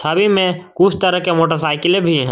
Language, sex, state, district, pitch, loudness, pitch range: Hindi, male, Jharkhand, Garhwa, 180 Hz, -15 LUFS, 165-185 Hz